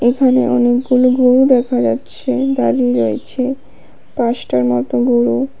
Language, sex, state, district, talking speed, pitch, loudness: Bengali, female, Tripura, West Tripura, 105 wpm, 240 Hz, -14 LUFS